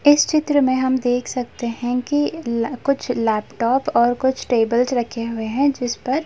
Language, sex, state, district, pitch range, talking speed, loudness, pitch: Hindi, female, Uttar Pradesh, Jalaun, 235-275 Hz, 190 wpm, -20 LUFS, 250 Hz